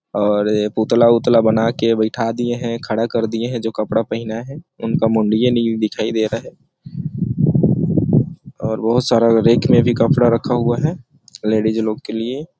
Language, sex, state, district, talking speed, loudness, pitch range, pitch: Hindi, male, Chhattisgarh, Sarguja, 170 wpm, -17 LUFS, 110-130 Hz, 115 Hz